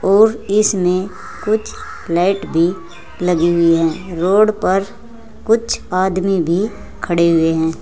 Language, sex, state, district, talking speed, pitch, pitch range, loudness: Hindi, female, Uttar Pradesh, Saharanpur, 125 wpm, 185 Hz, 170-210 Hz, -16 LUFS